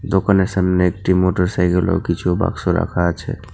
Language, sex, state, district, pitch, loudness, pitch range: Bengali, male, West Bengal, Alipurduar, 90 Hz, -18 LUFS, 90-95 Hz